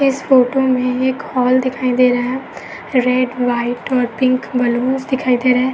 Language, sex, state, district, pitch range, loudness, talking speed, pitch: Hindi, female, Uttar Pradesh, Etah, 250-260 Hz, -16 LUFS, 190 wpm, 255 Hz